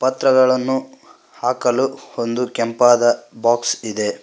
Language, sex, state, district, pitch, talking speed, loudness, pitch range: Kannada, male, Karnataka, Koppal, 120 Hz, 85 wpm, -18 LUFS, 115-130 Hz